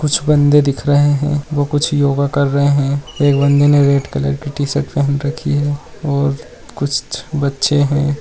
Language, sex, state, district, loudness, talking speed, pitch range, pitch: Hindi, male, Bihar, Jahanabad, -15 LUFS, 185 wpm, 140-145 Hz, 145 Hz